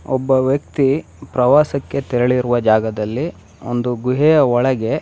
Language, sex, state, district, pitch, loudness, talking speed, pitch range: Kannada, male, Karnataka, Shimoga, 125 Hz, -17 LUFS, 105 wpm, 120-140 Hz